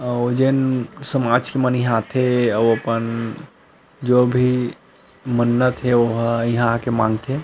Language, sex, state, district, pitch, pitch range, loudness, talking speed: Chhattisgarhi, male, Chhattisgarh, Rajnandgaon, 120 Hz, 115-125 Hz, -19 LUFS, 135 wpm